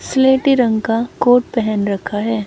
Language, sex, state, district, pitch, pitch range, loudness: Hindi, female, Haryana, Charkhi Dadri, 230 Hz, 215-250 Hz, -16 LUFS